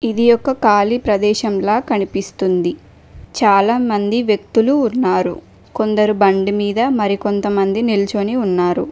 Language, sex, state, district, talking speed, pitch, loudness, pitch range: Telugu, female, Telangana, Mahabubabad, 110 wpm, 205 Hz, -16 LUFS, 195-230 Hz